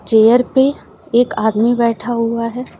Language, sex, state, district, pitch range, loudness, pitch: Hindi, female, Uttar Pradesh, Lucknow, 230-250 Hz, -15 LUFS, 235 Hz